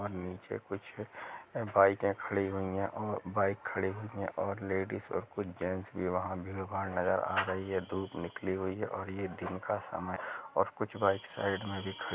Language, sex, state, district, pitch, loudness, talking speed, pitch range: Hindi, male, Chhattisgarh, Rajnandgaon, 95 Hz, -35 LUFS, 200 wpm, 95-100 Hz